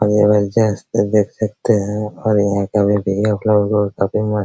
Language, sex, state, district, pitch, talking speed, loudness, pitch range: Hindi, male, Bihar, Araria, 105 Hz, 215 wpm, -17 LUFS, 100-105 Hz